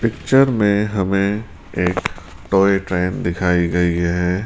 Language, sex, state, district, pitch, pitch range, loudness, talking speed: Hindi, female, Rajasthan, Jaipur, 95 Hz, 90-100 Hz, -18 LUFS, 120 wpm